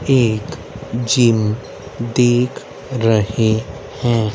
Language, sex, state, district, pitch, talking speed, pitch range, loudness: Hindi, male, Haryana, Rohtak, 115 Hz, 70 wpm, 110-125 Hz, -17 LUFS